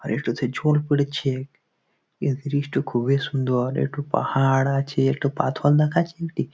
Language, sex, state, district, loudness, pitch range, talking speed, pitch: Bengali, male, West Bengal, Jalpaiguri, -23 LUFS, 135-150 Hz, 155 wpm, 140 Hz